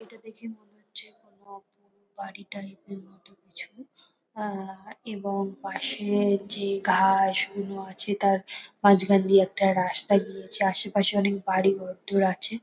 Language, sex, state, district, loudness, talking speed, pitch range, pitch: Bengali, female, West Bengal, North 24 Parganas, -24 LUFS, 140 wpm, 195-205 Hz, 200 Hz